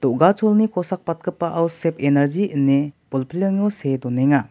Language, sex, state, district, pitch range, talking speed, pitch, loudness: Garo, male, Meghalaya, West Garo Hills, 140-190 Hz, 95 wpm, 165 Hz, -20 LUFS